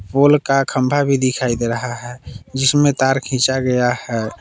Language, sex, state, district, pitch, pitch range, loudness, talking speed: Hindi, male, Jharkhand, Palamu, 130 Hz, 120-135 Hz, -17 LUFS, 175 wpm